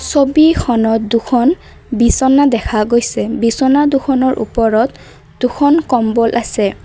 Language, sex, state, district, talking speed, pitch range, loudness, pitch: Assamese, female, Assam, Kamrup Metropolitan, 95 wpm, 230-275 Hz, -13 LUFS, 245 Hz